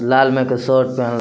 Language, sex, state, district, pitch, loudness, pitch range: Bhojpuri, male, Bihar, Muzaffarpur, 130 Hz, -16 LUFS, 125-130 Hz